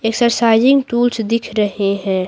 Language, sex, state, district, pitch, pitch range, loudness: Hindi, female, Bihar, Patna, 225 Hz, 205-235 Hz, -15 LUFS